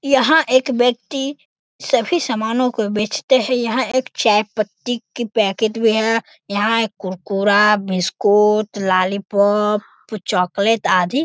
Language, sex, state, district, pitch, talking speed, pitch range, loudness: Hindi, male, Bihar, Sitamarhi, 220 Hz, 125 wpm, 205-250 Hz, -17 LUFS